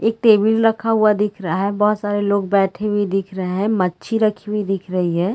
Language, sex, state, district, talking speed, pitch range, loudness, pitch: Hindi, female, Chhattisgarh, Bilaspur, 235 wpm, 195-215 Hz, -18 LUFS, 205 Hz